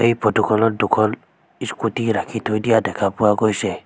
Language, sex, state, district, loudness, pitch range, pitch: Assamese, female, Assam, Sonitpur, -19 LUFS, 105-115 Hz, 110 Hz